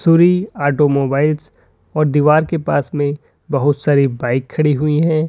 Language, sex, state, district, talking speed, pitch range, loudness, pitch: Hindi, male, Uttar Pradesh, Lalitpur, 150 wpm, 145-155 Hz, -16 LUFS, 150 Hz